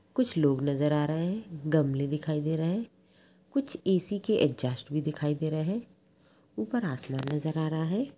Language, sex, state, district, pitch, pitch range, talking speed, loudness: Hindi, female, Bihar, Vaishali, 155 Hz, 150-195 Hz, 190 wpm, -30 LUFS